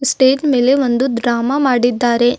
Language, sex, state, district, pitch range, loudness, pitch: Kannada, female, Karnataka, Bidar, 240-270 Hz, -14 LUFS, 255 Hz